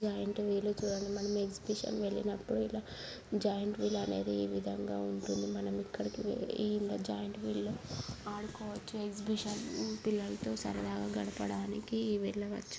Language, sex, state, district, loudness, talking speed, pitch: Telugu, female, Andhra Pradesh, Guntur, -37 LUFS, 100 wpm, 200 Hz